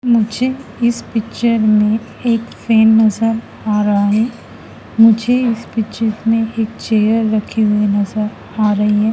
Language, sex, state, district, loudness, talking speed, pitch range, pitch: Hindi, female, Madhya Pradesh, Dhar, -15 LUFS, 145 wpm, 215-230 Hz, 220 Hz